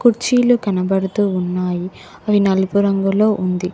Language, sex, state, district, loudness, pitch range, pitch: Telugu, female, Telangana, Hyderabad, -17 LUFS, 185-210 Hz, 195 Hz